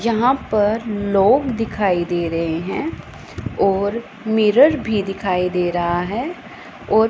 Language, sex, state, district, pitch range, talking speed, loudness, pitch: Hindi, female, Punjab, Pathankot, 180-225 Hz, 125 wpm, -19 LUFS, 210 Hz